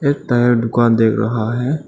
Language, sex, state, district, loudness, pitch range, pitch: Hindi, male, Arunachal Pradesh, Lower Dibang Valley, -15 LUFS, 115-135 Hz, 120 Hz